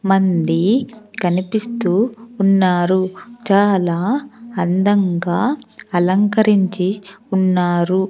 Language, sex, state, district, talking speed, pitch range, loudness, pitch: Telugu, female, Andhra Pradesh, Sri Satya Sai, 50 wpm, 180-220 Hz, -17 LUFS, 195 Hz